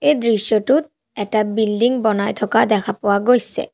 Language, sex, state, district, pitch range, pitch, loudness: Assamese, female, Assam, Sonitpur, 210-245 Hz, 220 Hz, -17 LUFS